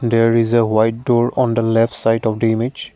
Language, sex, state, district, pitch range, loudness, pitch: English, male, Assam, Kamrup Metropolitan, 115-120 Hz, -16 LUFS, 115 Hz